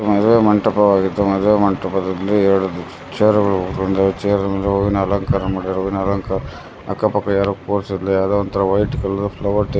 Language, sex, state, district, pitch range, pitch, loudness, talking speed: Kannada, male, Karnataka, Bellary, 95-100 Hz, 100 Hz, -17 LUFS, 135 wpm